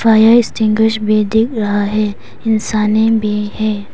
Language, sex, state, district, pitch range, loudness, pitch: Hindi, female, Arunachal Pradesh, Papum Pare, 210-220 Hz, -14 LUFS, 215 Hz